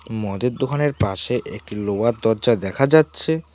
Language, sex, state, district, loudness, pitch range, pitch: Bengali, male, West Bengal, Cooch Behar, -20 LUFS, 105-135 Hz, 120 Hz